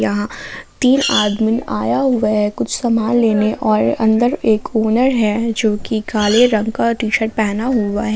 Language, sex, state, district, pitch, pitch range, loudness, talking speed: Hindi, female, Jharkhand, Palamu, 220 Hz, 215-240 Hz, -16 LUFS, 170 wpm